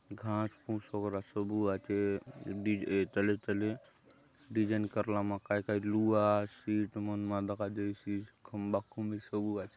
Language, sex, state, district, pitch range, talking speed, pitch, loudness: Halbi, male, Chhattisgarh, Bastar, 100-105 Hz, 165 wpm, 105 Hz, -35 LUFS